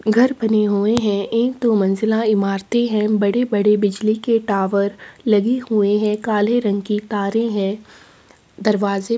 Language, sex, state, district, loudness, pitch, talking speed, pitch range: Hindi, female, Chhattisgarh, Sukma, -18 LUFS, 215 Hz, 150 wpm, 205-230 Hz